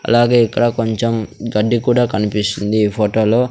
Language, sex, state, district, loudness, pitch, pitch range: Telugu, male, Andhra Pradesh, Sri Satya Sai, -16 LUFS, 110 Hz, 105-120 Hz